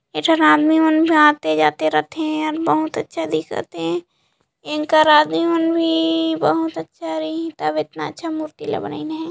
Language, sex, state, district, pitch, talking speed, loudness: Chhattisgarhi, female, Chhattisgarh, Jashpur, 305 Hz, 160 wpm, -18 LUFS